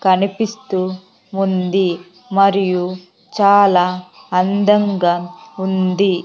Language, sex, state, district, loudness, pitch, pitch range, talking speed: Telugu, female, Andhra Pradesh, Sri Satya Sai, -16 LUFS, 190 Hz, 180-200 Hz, 65 wpm